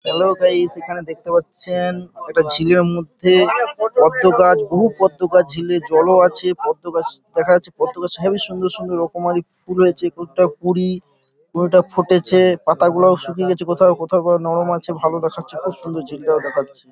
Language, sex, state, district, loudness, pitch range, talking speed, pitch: Bengali, male, West Bengal, Paschim Medinipur, -17 LUFS, 170-185 Hz, 165 wpm, 180 Hz